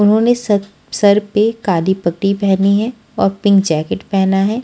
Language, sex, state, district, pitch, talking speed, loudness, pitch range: Hindi, female, Punjab, Fazilka, 200 Hz, 170 wpm, -15 LUFS, 195-215 Hz